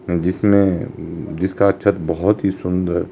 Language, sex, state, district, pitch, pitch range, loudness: Hindi, male, Himachal Pradesh, Shimla, 95 Hz, 90-100 Hz, -18 LUFS